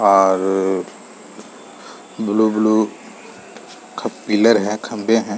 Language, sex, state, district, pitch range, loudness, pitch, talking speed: Hindi, male, Chhattisgarh, Raigarh, 95-110 Hz, -18 LUFS, 105 Hz, 110 wpm